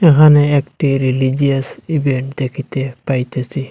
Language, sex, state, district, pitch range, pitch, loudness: Bengali, male, Assam, Hailakandi, 130-145 Hz, 135 Hz, -15 LUFS